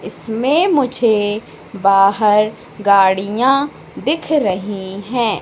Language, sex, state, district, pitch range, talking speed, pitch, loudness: Hindi, female, Madhya Pradesh, Katni, 195-250 Hz, 75 wpm, 215 Hz, -16 LUFS